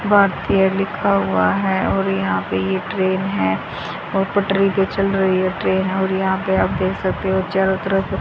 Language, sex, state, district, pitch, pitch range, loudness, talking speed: Hindi, female, Haryana, Charkhi Dadri, 190 Hz, 185-195 Hz, -19 LUFS, 190 wpm